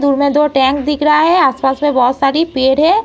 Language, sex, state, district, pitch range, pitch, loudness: Hindi, female, Uttar Pradesh, Etah, 265-300 Hz, 285 Hz, -12 LUFS